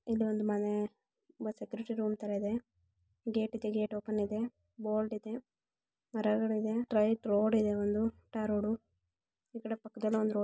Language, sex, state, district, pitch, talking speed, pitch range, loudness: Kannada, female, Karnataka, Shimoga, 215 Hz, 85 wpm, 210-225 Hz, -35 LUFS